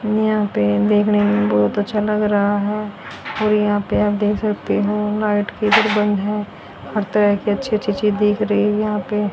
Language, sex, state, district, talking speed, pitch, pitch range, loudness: Hindi, female, Haryana, Rohtak, 185 wpm, 210 Hz, 205-210 Hz, -18 LUFS